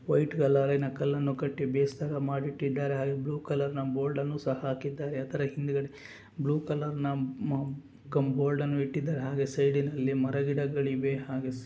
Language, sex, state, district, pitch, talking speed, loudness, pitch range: Kannada, male, Karnataka, Gulbarga, 140 Hz, 155 wpm, -31 LUFS, 135-145 Hz